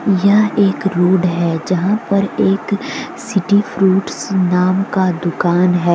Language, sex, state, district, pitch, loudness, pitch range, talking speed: Hindi, female, Jharkhand, Deoghar, 195 Hz, -15 LUFS, 180-200 Hz, 130 wpm